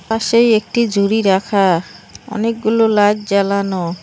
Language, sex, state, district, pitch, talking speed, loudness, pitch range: Bengali, female, West Bengal, Cooch Behar, 210 Hz, 105 wpm, -15 LUFS, 200-225 Hz